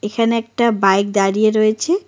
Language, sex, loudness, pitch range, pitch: Bengali, female, -16 LUFS, 205-230 Hz, 215 Hz